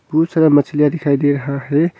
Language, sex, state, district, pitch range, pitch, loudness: Hindi, male, Arunachal Pradesh, Longding, 145-160 Hz, 150 Hz, -15 LUFS